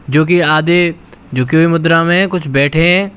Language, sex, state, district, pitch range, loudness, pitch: Hindi, male, Uttar Pradesh, Shamli, 155-175 Hz, -12 LUFS, 165 Hz